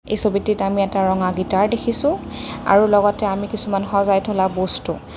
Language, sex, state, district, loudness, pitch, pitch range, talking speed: Assamese, female, Assam, Kamrup Metropolitan, -19 LUFS, 200 Hz, 195-210 Hz, 160 wpm